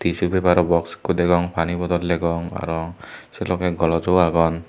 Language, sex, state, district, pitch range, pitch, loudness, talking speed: Chakma, male, Tripura, Dhalai, 85-90 Hz, 85 Hz, -20 LUFS, 165 wpm